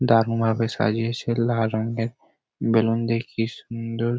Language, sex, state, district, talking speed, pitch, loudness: Bengali, male, West Bengal, Jhargram, 130 wpm, 115 Hz, -24 LUFS